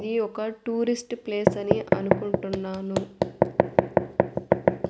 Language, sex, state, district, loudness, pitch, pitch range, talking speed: Telugu, female, Andhra Pradesh, Annamaya, -26 LUFS, 205 Hz, 190-225 Hz, 75 wpm